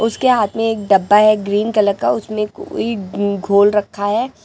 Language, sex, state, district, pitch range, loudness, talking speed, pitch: Hindi, female, Delhi, New Delhi, 200-220 Hz, -16 LUFS, 190 wpm, 210 Hz